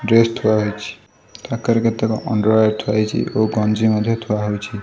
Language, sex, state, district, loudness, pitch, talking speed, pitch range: Odia, male, Odisha, Khordha, -18 LUFS, 110 Hz, 160 wpm, 105-115 Hz